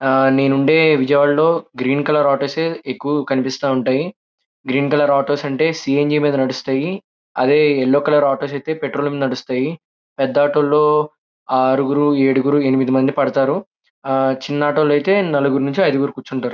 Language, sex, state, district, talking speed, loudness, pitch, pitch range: Telugu, male, Andhra Pradesh, Krishna, 140 wpm, -17 LUFS, 140 Hz, 135-150 Hz